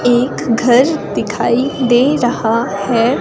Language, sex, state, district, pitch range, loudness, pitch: Hindi, female, Himachal Pradesh, Shimla, 235-260 Hz, -14 LUFS, 245 Hz